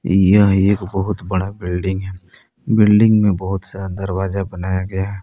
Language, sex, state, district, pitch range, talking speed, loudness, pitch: Hindi, male, Jharkhand, Palamu, 95-100 Hz, 150 wpm, -17 LUFS, 95 Hz